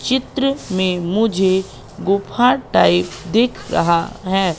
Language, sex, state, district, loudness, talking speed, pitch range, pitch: Hindi, female, Madhya Pradesh, Katni, -17 LUFS, 105 wpm, 180-240 Hz, 195 Hz